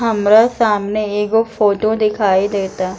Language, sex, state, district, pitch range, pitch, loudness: Bhojpuri, female, Bihar, East Champaran, 200-220 Hz, 210 Hz, -15 LUFS